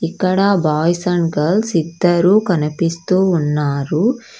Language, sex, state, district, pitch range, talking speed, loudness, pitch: Telugu, female, Karnataka, Bangalore, 160-190 Hz, 95 wpm, -16 LUFS, 170 Hz